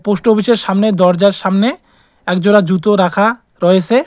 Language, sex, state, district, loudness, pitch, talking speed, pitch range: Bengali, male, West Bengal, Cooch Behar, -13 LUFS, 205 Hz, 150 wpm, 190-225 Hz